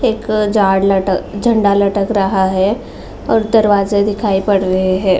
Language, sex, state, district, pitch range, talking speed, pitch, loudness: Hindi, female, Uttar Pradesh, Jalaun, 190-210 Hz, 150 wpm, 200 Hz, -14 LUFS